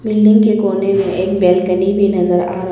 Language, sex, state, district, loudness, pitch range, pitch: Hindi, female, Arunachal Pradesh, Papum Pare, -13 LUFS, 185-200 Hz, 195 Hz